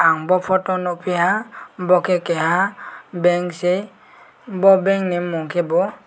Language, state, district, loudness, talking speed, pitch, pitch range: Kokborok, Tripura, West Tripura, -19 LUFS, 150 wpm, 180 Hz, 175-190 Hz